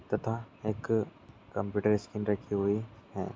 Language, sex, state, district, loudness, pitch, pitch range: Hindi, male, Bihar, Lakhisarai, -33 LUFS, 105 Hz, 105-110 Hz